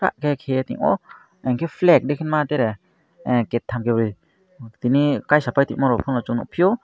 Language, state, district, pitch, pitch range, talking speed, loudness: Kokborok, Tripura, Dhalai, 135 Hz, 120-150 Hz, 165 wpm, -21 LUFS